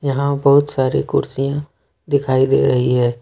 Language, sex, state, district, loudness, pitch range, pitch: Hindi, male, Jharkhand, Ranchi, -17 LUFS, 130-140 Hz, 135 Hz